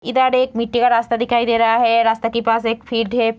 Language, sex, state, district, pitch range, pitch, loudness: Hindi, female, Bihar, Sitamarhi, 230-240 Hz, 230 Hz, -17 LUFS